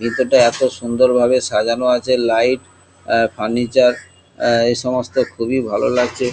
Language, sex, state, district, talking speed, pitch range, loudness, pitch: Bengali, male, West Bengal, Kolkata, 140 wpm, 115-125 Hz, -16 LUFS, 120 Hz